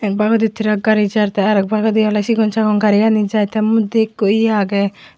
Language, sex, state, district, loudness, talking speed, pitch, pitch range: Chakma, female, Tripura, Unakoti, -15 LUFS, 220 wpm, 215 Hz, 205-220 Hz